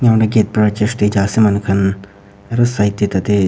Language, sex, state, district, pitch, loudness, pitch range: Nagamese, male, Nagaland, Kohima, 105 Hz, -15 LUFS, 100-110 Hz